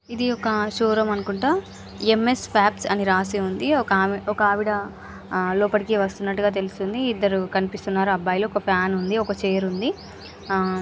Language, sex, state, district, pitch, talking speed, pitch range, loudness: Telugu, female, Andhra Pradesh, Anantapur, 205 Hz, 135 wpm, 195-215 Hz, -22 LUFS